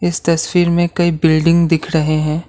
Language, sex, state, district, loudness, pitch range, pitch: Hindi, male, Assam, Kamrup Metropolitan, -14 LUFS, 160-175 Hz, 170 Hz